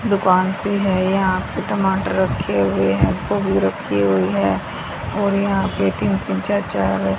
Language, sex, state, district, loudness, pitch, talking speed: Hindi, female, Haryana, Rohtak, -19 LUFS, 100 Hz, 175 wpm